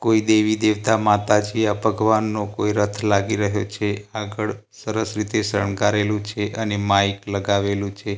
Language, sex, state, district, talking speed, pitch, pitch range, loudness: Gujarati, male, Gujarat, Gandhinagar, 145 wpm, 105 Hz, 100-110 Hz, -21 LUFS